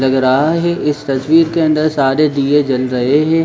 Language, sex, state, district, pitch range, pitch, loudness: Hindi, male, Jharkhand, Sahebganj, 135-155 Hz, 145 Hz, -13 LUFS